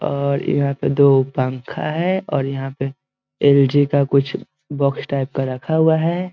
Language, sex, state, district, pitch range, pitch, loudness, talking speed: Hindi, male, Bihar, Muzaffarpur, 135-150 Hz, 140 Hz, -18 LUFS, 180 wpm